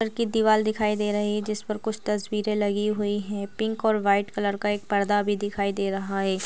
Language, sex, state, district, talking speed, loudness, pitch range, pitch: Hindi, female, Uttar Pradesh, Ghazipur, 240 wpm, -25 LUFS, 200-215 Hz, 210 Hz